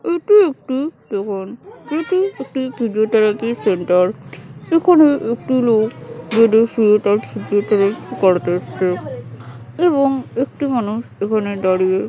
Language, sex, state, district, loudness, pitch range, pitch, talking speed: Bengali, female, West Bengal, Kolkata, -17 LUFS, 195-270 Hz, 220 Hz, 105 wpm